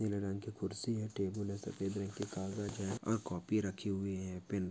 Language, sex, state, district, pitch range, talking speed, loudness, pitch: Hindi, male, Maharashtra, Nagpur, 95-105 Hz, 230 wpm, -40 LUFS, 100 Hz